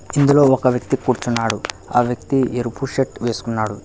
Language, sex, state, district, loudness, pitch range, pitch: Telugu, male, Telangana, Hyderabad, -19 LUFS, 115-135 Hz, 125 Hz